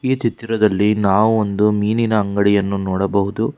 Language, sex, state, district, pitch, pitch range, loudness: Kannada, male, Karnataka, Bangalore, 105 Hz, 100-110 Hz, -17 LUFS